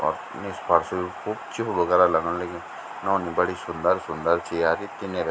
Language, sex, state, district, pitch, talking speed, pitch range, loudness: Garhwali, male, Uttarakhand, Tehri Garhwal, 90 Hz, 190 wpm, 85-100 Hz, -25 LUFS